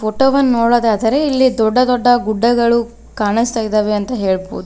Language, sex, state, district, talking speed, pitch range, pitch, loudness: Kannada, female, Karnataka, Koppal, 130 wpm, 215-245 Hz, 235 Hz, -14 LUFS